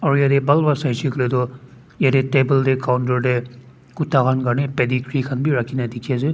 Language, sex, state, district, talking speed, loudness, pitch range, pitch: Nagamese, male, Nagaland, Dimapur, 220 wpm, -19 LUFS, 125-140 Hz, 130 Hz